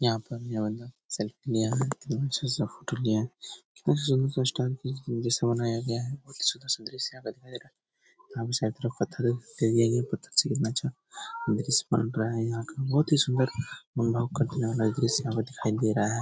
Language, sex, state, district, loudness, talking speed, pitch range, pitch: Hindi, male, Bihar, Jahanabad, -29 LUFS, 150 wpm, 115-135 Hz, 120 Hz